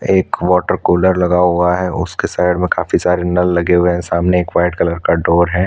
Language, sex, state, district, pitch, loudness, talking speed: Hindi, male, Chhattisgarh, Korba, 90 Hz, -14 LUFS, 230 wpm